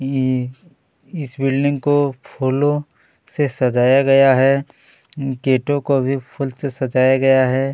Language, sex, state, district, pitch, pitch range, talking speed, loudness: Hindi, male, Chhattisgarh, Kabirdham, 135 Hz, 130-145 Hz, 125 wpm, -17 LUFS